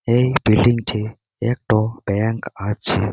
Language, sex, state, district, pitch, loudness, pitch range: Bengali, male, West Bengal, Malda, 110 Hz, -19 LUFS, 105-120 Hz